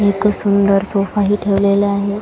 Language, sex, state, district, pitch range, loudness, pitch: Marathi, female, Maharashtra, Chandrapur, 200-205 Hz, -15 LUFS, 200 Hz